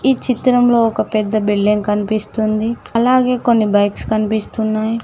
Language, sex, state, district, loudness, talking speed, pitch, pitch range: Telugu, female, Telangana, Mahabubabad, -16 LUFS, 120 wpm, 220 Hz, 215-235 Hz